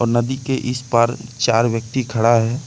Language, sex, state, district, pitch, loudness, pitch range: Hindi, male, Jharkhand, Deoghar, 120 Hz, -19 LUFS, 115-125 Hz